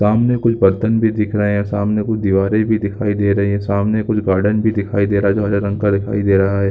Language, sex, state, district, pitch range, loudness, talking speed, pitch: Hindi, male, Chhattisgarh, Korba, 100-110 Hz, -16 LUFS, 230 wpm, 100 Hz